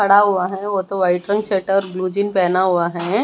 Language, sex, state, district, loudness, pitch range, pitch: Hindi, female, Odisha, Malkangiri, -18 LUFS, 185-200 Hz, 195 Hz